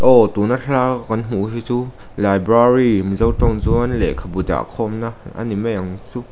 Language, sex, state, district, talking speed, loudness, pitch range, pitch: Mizo, male, Mizoram, Aizawl, 180 wpm, -18 LUFS, 100-120 Hz, 115 Hz